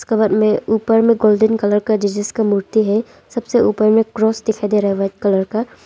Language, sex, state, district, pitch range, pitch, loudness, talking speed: Hindi, female, Arunachal Pradesh, Longding, 205-225 Hz, 215 Hz, -16 LUFS, 225 wpm